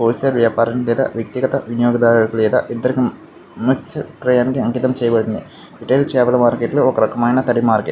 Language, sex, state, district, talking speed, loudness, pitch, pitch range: Telugu, male, Andhra Pradesh, Visakhapatnam, 120 wpm, -16 LUFS, 120 Hz, 115-125 Hz